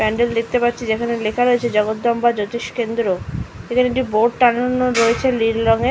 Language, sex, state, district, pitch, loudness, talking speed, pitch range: Bengali, female, West Bengal, Malda, 235 Hz, -18 LUFS, 140 wpm, 225-245 Hz